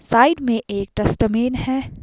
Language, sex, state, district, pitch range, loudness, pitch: Hindi, female, Himachal Pradesh, Shimla, 220-260 Hz, -19 LUFS, 235 Hz